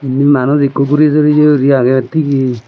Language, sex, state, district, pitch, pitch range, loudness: Chakma, male, Tripura, Dhalai, 140 Hz, 130-150 Hz, -11 LUFS